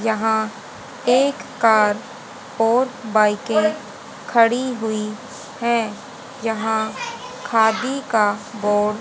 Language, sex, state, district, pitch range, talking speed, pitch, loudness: Hindi, female, Haryana, Jhajjar, 215-245 Hz, 85 wpm, 220 Hz, -20 LUFS